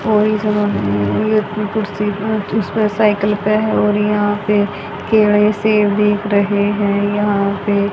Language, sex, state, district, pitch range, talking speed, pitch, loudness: Hindi, female, Haryana, Charkhi Dadri, 205-215 Hz, 150 wpm, 210 Hz, -16 LUFS